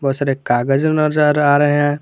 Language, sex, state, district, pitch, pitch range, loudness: Hindi, male, Jharkhand, Garhwa, 145 Hz, 135-150 Hz, -15 LUFS